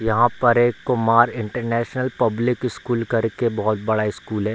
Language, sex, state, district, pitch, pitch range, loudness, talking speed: Hindi, male, Bihar, Bhagalpur, 115 Hz, 110-120 Hz, -20 LUFS, 160 wpm